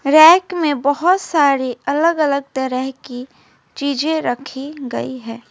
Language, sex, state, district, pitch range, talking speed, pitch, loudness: Hindi, female, West Bengal, Alipurduar, 260-310 Hz, 130 wpm, 280 Hz, -17 LUFS